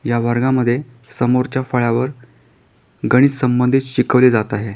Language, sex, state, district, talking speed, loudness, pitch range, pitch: Marathi, male, Maharashtra, Pune, 115 wpm, -16 LUFS, 120-130 Hz, 125 Hz